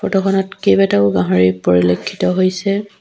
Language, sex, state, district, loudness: Assamese, female, Assam, Sonitpur, -15 LUFS